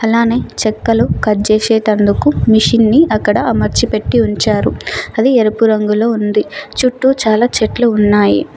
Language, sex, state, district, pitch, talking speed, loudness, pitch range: Telugu, female, Telangana, Mahabubabad, 220 Hz, 125 wpm, -12 LUFS, 210-235 Hz